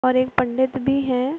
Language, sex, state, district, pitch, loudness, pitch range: Hindi, female, Bihar, Araria, 255 Hz, -20 LUFS, 255-265 Hz